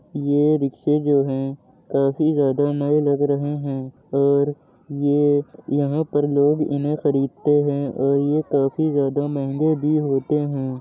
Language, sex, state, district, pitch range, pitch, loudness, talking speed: Hindi, male, Uttar Pradesh, Jyotiba Phule Nagar, 140-145 Hz, 145 Hz, -21 LUFS, 145 wpm